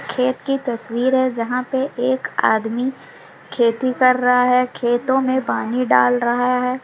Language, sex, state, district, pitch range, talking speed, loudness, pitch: Hindi, female, Bihar, Sitamarhi, 240-260 Hz, 160 wpm, -18 LUFS, 250 Hz